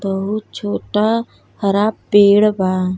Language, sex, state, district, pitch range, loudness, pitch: Bhojpuri, female, Uttar Pradesh, Gorakhpur, 185-210 Hz, -16 LUFS, 200 Hz